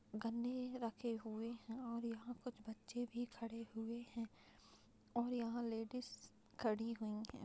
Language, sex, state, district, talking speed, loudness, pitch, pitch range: Hindi, female, Uttar Pradesh, Hamirpur, 145 wpm, -46 LUFS, 230 Hz, 225-240 Hz